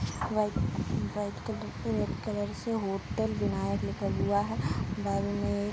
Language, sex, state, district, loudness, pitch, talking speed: Hindi, female, Uttar Pradesh, Hamirpur, -32 LUFS, 105 Hz, 155 wpm